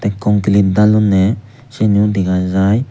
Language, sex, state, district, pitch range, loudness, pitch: Chakma, male, Tripura, Unakoti, 95-105 Hz, -13 LUFS, 100 Hz